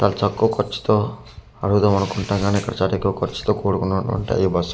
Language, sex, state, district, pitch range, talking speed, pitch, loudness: Telugu, male, Andhra Pradesh, Manyam, 95-105 Hz, 165 wpm, 100 Hz, -21 LUFS